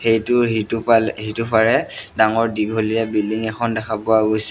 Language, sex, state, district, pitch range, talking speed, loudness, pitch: Assamese, male, Assam, Sonitpur, 110-115 Hz, 135 wpm, -18 LUFS, 110 Hz